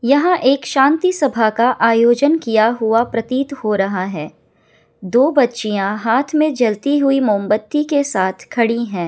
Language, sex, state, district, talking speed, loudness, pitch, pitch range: Hindi, female, Bihar, Kishanganj, 150 wpm, -16 LUFS, 235 Hz, 215-280 Hz